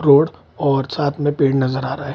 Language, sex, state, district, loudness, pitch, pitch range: Hindi, male, Bihar, Kishanganj, -18 LUFS, 140 Hz, 135-145 Hz